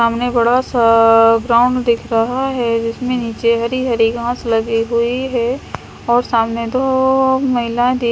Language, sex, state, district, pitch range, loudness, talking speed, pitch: Hindi, female, Chandigarh, Chandigarh, 230-250 Hz, -15 LUFS, 150 wpm, 235 Hz